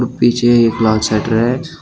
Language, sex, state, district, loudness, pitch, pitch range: Hindi, male, Uttar Pradesh, Shamli, -14 LUFS, 120 Hz, 110-125 Hz